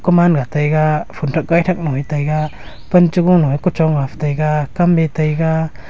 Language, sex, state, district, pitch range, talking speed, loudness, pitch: Wancho, male, Arunachal Pradesh, Longding, 150-170 Hz, 205 wpm, -16 LUFS, 155 Hz